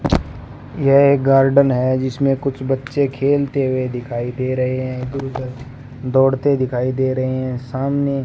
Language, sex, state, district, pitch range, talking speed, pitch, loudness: Hindi, male, Rajasthan, Bikaner, 130-135 Hz, 145 wpm, 130 Hz, -18 LUFS